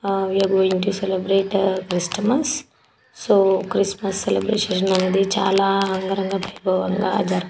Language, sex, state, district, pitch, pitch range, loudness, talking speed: Telugu, female, Telangana, Nalgonda, 195 Hz, 190-195 Hz, -20 LUFS, 130 wpm